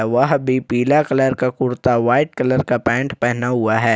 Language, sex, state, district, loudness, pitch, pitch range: Hindi, male, Jharkhand, Ranchi, -17 LUFS, 125 Hz, 120-135 Hz